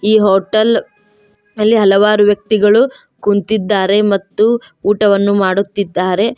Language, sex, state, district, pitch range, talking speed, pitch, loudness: Kannada, female, Karnataka, Koppal, 200-215 Hz, 85 wpm, 205 Hz, -13 LUFS